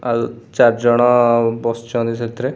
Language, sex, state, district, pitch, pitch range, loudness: Odia, male, Odisha, Khordha, 120 Hz, 115-120 Hz, -16 LUFS